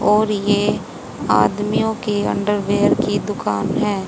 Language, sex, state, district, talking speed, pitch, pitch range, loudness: Hindi, female, Haryana, Charkhi Dadri, 120 wpm, 205 Hz, 205-210 Hz, -19 LUFS